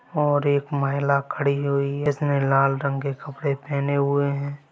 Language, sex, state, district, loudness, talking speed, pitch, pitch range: Hindi, male, Bihar, Gaya, -23 LUFS, 180 wpm, 140 Hz, 140-145 Hz